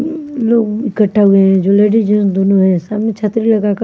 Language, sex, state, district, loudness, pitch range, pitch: Hindi, female, Maharashtra, Mumbai Suburban, -12 LUFS, 200-225 Hz, 210 Hz